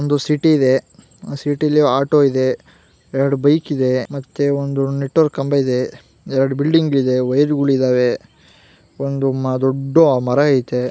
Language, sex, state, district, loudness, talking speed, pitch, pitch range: Kannada, female, Karnataka, Gulbarga, -17 LUFS, 135 wpm, 140 Hz, 130-145 Hz